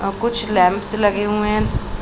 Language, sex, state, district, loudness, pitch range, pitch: Hindi, female, Uttar Pradesh, Muzaffarnagar, -18 LUFS, 180-210 Hz, 205 Hz